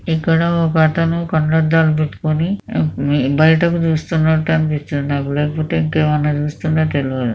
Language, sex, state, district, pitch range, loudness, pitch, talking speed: Telugu, male, Andhra Pradesh, Krishna, 150-165 Hz, -16 LUFS, 155 Hz, 105 wpm